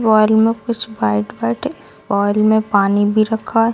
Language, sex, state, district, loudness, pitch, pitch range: Hindi, female, Bihar, Darbhanga, -16 LUFS, 215 Hz, 200-220 Hz